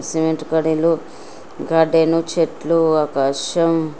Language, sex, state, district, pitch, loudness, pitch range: Telugu, male, Andhra Pradesh, Srikakulam, 160 Hz, -18 LUFS, 155-165 Hz